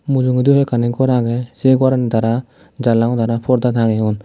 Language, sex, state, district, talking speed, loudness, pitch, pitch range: Chakma, male, Tripura, Dhalai, 170 wpm, -16 LUFS, 120 Hz, 115-130 Hz